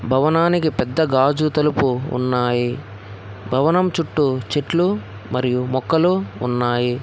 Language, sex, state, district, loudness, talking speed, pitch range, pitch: Telugu, male, Telangana, Hyderabad, -19 LUFS, 95 wpm, 120-155 Hz, 130 Hz